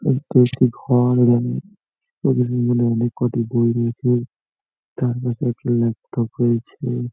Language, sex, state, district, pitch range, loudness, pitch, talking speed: Bengali, male, West Bengal, North 24 Parganas, 120-125 Hz, -20 LUFS, 120 Hz, 125 wpm